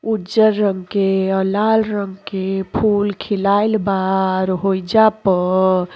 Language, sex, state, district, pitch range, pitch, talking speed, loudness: Bhojpuri, female, Uttar Pradesh, Ghazipur, 190-215 Hz, 195 Hz, 140 wpm, -17 LUFS